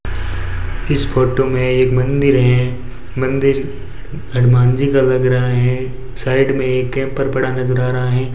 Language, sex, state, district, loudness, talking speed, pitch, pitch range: Hindi, male, Rajasthan, Bikaner, -16 LUFS, 160 wpm, 130 Hz, 125-135 Hz